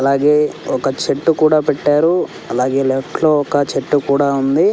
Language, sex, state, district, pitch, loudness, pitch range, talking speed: Telugu, male, Andhra Pradesh, Sri Satya Sai, 145 Hz, -15 LUFS, 135-155 Hz, 150 wpm